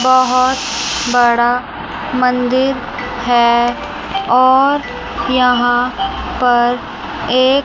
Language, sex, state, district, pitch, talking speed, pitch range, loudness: Hindi, female, Chandigarh, Chandigarh, 250 Hz, 65 wpm, 245-260 Hz, -14 LUFS